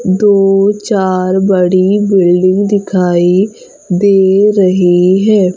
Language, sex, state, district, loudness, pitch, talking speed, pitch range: Hindi, female, Madhya Pradesh, Umaria, -10 LUFS, 190 Hz, 85 wpm, 185-200 Hz